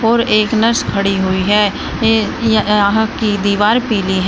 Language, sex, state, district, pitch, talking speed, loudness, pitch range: Hindi, female, Uttar Pradesh, Shamli, 215 Hz, 180 wpm, -14 LUFS, 200-225 Hz